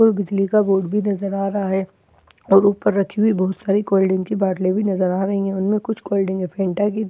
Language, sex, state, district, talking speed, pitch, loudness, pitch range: Hindi, female, Bihar, Katihar, 260 wpm, 195 Hz, -19 LUFS, 190-205 Hz